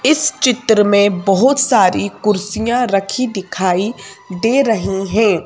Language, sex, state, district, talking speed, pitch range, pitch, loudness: Hindi, female, Madhya Pradesh, Bhopal, 120 wpm, 195-245 Hz, 210 Hz, -15 LUFS